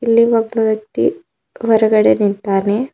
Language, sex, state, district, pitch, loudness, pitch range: Kannada, female, Karnataka, Bidar, 220 Hz, -15 LUFS, 205-230 Hz